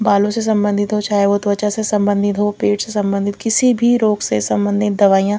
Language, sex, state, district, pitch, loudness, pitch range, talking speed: Hindi, female, Bihar, Katihar, 205 Hz, -16 LUFS, 200-210 Hz, 210 wpm